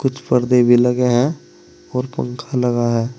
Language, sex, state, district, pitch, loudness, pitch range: Hindi, male, Uttar Pradesh, Saharanpur, 125 Hz, -17 LUFS, 120-125 Hz